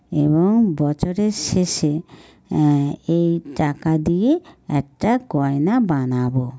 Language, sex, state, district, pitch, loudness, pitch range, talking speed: Bengali, female, West Bengal, North 24 Parganas, 160 Hz, -19 LUFS, 145-185 Hz, 90 wpm